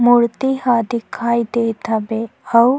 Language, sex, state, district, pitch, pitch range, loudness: Chhattisgarhi, female, Chhattisgarh, Sukma, 235 Hz, 230-245 Hz, -18 LUFS